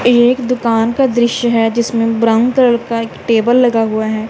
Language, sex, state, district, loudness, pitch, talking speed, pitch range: Hindi, female, Punjab, Kapurthala, -13 LUFS, 235 Hz, 210 wpm, 225-245 Hz